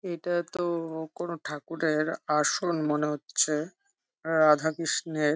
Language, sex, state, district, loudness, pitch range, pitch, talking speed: Bengali, female, West Bengal, Jhargram, -28 LUFS, 150-170 Hz, 160 Hz, 110 wpm